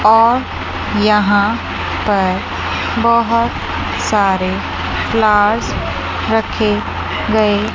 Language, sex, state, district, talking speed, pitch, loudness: Hindi, female, Chandigarh, Chandigarh, 60 wpm, 205 Hz, -15 LUFS